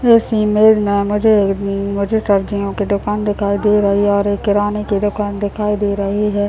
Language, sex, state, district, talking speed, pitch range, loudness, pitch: Hindi, male, Bihar, Muzaffarpur, 210 wpm, 200-210 Hz, -16 LUFS, 205 Hz